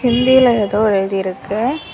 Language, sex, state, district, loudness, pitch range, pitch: Tamil, female, Tamil Nadu, Kanyakumari, -15 LUFS, 195-245 Hz, 215 Hz